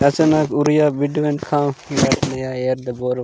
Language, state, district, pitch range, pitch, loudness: Gondi, Chhattisgarh, Sukma, 130-150 Hz, 145 Hz, -18 LUFS